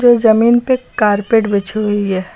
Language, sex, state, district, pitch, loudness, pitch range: Hindi, female, Uttar Pradesh, Lucknow, 215 Hz, -14 LUFS, 205-240 Hz